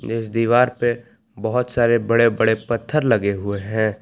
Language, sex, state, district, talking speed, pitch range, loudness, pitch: Hindi, male, Jharkhand, Palamu, 165 wpm, 110-120 Hz, -19 LUFS, 115 Hz